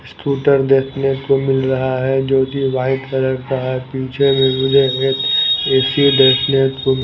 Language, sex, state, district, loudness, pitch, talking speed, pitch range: Hindi, male, Chhattisgarh, Raipur, -15 LUFS, 135 Hz, 155 wpm, 130-135 Hz